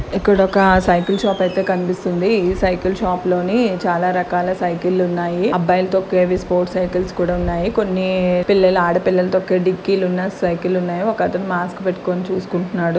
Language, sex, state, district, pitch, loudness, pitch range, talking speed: Telugu, female, Telangana, Karimnagar, 185 Hz, -17 LUFS, 180-190 Hz, 160 wpm